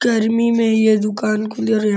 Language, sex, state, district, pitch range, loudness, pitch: Hindi, male, Uttar Pradesh, Gorakhpur, 215-230 Hz, -17 LUFS, 220 Hz